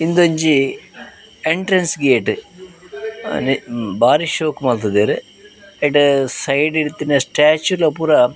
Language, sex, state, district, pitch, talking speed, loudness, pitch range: Tulu, male, Karnataka, Dakshina Kannada, 155 Hz, 85 wpm, -16 LUFS, 140-180 Hz